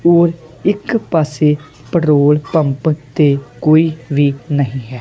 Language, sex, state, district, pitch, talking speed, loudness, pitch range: Punjabi, male, Punjab, Kapurthala, 150 Hz, 120 wpm, -15 LUFS, 140-160 Hz